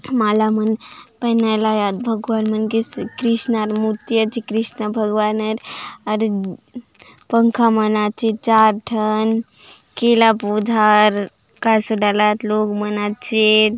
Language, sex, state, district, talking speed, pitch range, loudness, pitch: Halbi, female, Chhattisgarh, Bastar, 125 wpm, 215-225 Hz, -17 LUFS, 220 Hz